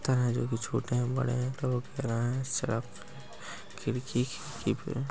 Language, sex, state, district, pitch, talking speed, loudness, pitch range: Hindi, male, Maharashtra, Chandrapur, 125 Hz, 95 wpm, -32 LUFS, 115-130 Hz